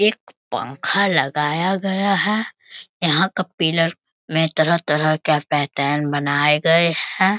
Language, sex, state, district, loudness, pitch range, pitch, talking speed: Hindi, male, Bihar, Bhagalpur, -18 LUFS, 150-190 Hz, 165 Hz, 120 wpm